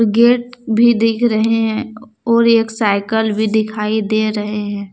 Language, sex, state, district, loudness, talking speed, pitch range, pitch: Hindi, female, Jharkhand, Deoghar, -15 LUFS, 160 wpm, 215-230 Hz, 220 Hz